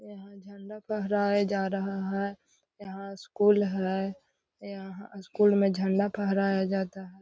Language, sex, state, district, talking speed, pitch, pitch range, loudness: Magahi, female, Bihar, Gaya, 135 wpm, 195 Hz, 195-205 Hz, -28 LUFS